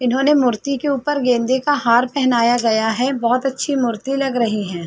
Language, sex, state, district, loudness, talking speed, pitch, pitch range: Hindi, female, Chhattisgarh, Balrampur, -17 LUFS, 185 wpm, 250 Hz, 235-275 Hz